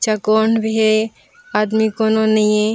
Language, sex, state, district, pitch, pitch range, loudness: Chhattisgarhi, female, Chhattisgarh, Raigarh, 220 Hz, 215-220 Hz, -16 LUFS